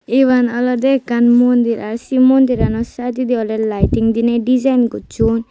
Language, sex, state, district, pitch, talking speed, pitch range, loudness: Chakma, female, Tripura, West Tripura, 245 Hz, 140 wpm, 230-255 Hz, -15 LUFS